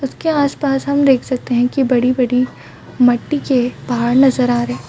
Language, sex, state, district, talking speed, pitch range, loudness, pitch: Hindi, female, Chhattisgarh, Raigarh, 185 wpm, 245-275 Hz, -15 LUFS, 255 Hz